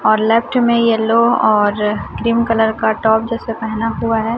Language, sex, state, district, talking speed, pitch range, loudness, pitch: Hindi, male, Chhattisgarh, Raipur, 175 wpm, 220-230 Hz, -15 LUFS, 225 Hz